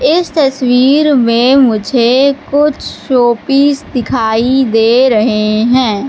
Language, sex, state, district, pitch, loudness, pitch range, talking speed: Hindi, female, Madhya Pradesh, Katni, 255 Hz, -10 LUFS, 235-275 Hz, 100 wpm